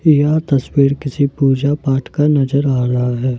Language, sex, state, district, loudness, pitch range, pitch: Hindi, male, Jharkhand, Ranchi, -15 LUFS, 135-145 Hz, 140 Hz